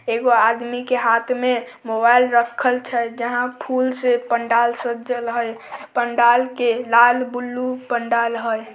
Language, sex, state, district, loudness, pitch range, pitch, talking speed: Maithili, female, Bihar, Samastipur, -19 LUFS, 235-250 Hz, 240 Hz, 135 wpm